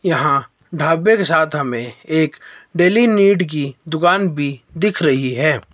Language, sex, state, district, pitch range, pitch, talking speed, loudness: Hindi, male, Himachal Pradesh, Shimla, 140-180 Hz, 160 Hz, 145 wpm, -16 LUFS